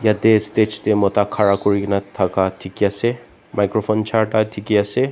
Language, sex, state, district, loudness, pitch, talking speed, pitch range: Nagamese, male, Nagaland, Dimapur, -18 LUFS, 105 Hz, 165 wpm, 100-110 Hz